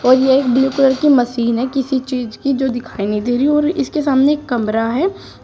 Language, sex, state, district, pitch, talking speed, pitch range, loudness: Hindi, female, Uttar Pradesh, Shamli, 265 Hz, 220 wpm, 245-280 Hz, -16 LUFS